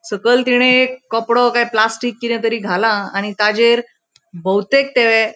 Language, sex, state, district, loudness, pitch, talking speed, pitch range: Konkani, female, Goa, North and South Goa, -15 LUFS, 230 Hz, 155 wpm, 210-245 Hz